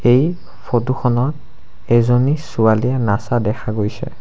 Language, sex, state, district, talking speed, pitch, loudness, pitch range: Assamese, male, Assam, Sonitpur, 115 wpm, 120 Hz, -17 LUFS, 110-130 Hz